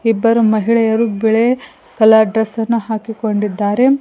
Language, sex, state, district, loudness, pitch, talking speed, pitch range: Kannada, female, Karnataka, Koppal, -14 LUFS, 225 Hz, 105 wpm, 220-230 Hz